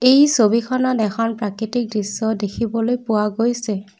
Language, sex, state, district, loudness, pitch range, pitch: Assamese, female, Assam, Kamrup Metropolitan, -19 LUFS, 210-240 Hz, 225 Hz